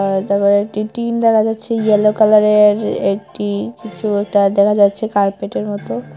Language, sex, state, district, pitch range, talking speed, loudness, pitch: Bengali, female, Tripura, Unakoti, 200-215 Hz, 135 wpm, -15 LUFS, 205 Hz